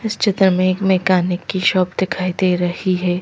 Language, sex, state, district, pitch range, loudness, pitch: Hindi, female, Madhya Pradesh, Bhopal, 180-190 Hz, -17 LUFS, 185 Hz